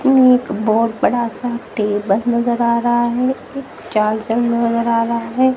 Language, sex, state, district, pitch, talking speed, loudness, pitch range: Hindi, female, Haryana, Jhajjar, 235 Hz, 160 wpm, -17 LUFS, 225-245 Hz